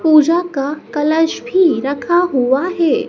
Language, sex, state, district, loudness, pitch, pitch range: Hindi, male, Madhya Pradesh, Dhar, -15 LUFS, 315 Hz, 280-345 Hz